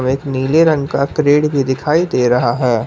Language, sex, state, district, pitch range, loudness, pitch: Hindi, male, Jharkhand, Palamu, 125-150 Hz, -14 LUFS, 140 Hz